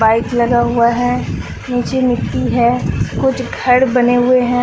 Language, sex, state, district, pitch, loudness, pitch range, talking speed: Hindi, female, Bihar, West Champaran, 245 Hz, -15 LUFS, 240-250 Hz, 155 wpm